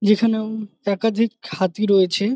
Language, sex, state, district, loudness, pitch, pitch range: Bengali, male, West Bengal, Jalpaiguri, -20 LUFS, 210 Hz, 200-220 Hz